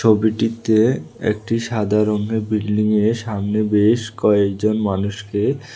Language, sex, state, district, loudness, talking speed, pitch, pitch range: Bengali, male, Tripura, West Tripura, -19 LUFS, 95 wpm, 110 Hz, 105-110 Hz